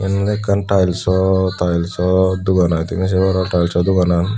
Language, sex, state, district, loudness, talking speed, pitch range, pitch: Chakma, male, Tripura, Unakoti, -16 LUFS, 165 wpm, 90-95 Hz, 95 Hz